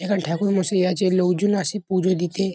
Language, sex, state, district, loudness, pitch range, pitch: Bengali, male, West Bengal, Kolkata, -21 LUFS, 185-200 Hz, 190 Hz